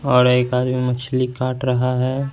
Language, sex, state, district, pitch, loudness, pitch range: Hindi, male, Bihar, Katihar, 125 Hz, -19 LUFS, 125-130 Hz